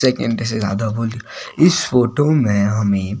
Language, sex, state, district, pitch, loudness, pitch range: Hindi, male, Himachal Pradesh, Shimla, 115 Hz, -17 LUFS, 105-130 Hz